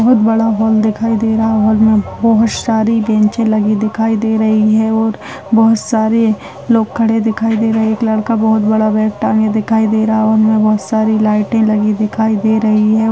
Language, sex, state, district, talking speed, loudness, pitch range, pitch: Hindi, female, Bihar, Muzaffarpur, 210 wpm, -13 LUFS, 215-225 Hz, 220 Hz